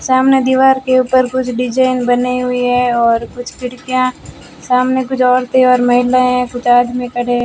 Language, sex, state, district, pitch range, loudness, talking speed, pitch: Hindi, female, Rajasthan, Bikaner, 245-255 Hz, -13 LUFS, 170 wpm, 250 Hz